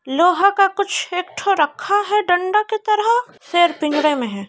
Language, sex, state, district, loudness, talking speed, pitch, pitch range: Hindi, female, Bihar, Kishanganj, -17 LUFS, 175 wpm, 365 Hz, 300-415 Hz